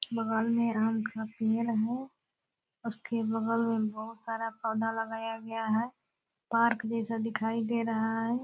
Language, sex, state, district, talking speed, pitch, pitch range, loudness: Hindi, female, Bihar, Purnia, 155 wpm, 225 Hz, 225-230 Hz, -32 LUFS